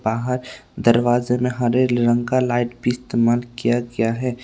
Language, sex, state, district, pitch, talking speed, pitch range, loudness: Hindi, male, Tripura, West Tripura, 120 Hz, 160 wpm, 120-125 Hz, -20 LUFS